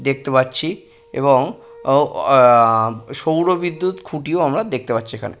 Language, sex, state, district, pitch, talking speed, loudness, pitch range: Bengali, male, West Bengal, Purulia, 135 Hz, 120 wpm, -17 LUFS, 120-175 Hz